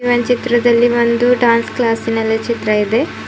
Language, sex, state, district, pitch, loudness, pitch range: Kannada, female, Karnataka, Bidar, 235 Hz, -14 LUFS, 225-245 Hz